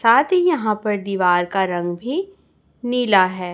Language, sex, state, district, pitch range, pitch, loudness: Hindi, female, Chhattisgarh, Raipur, 185-250 Hz, 210 Hz, -19 LUFS